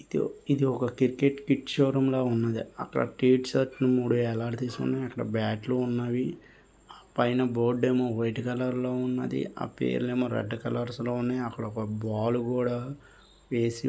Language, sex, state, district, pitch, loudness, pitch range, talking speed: Telugu, male, Andhra Pradesh, Visakhapatnam, 125 Hz, -28 LUFS, 115-125 Hz, 150 wpm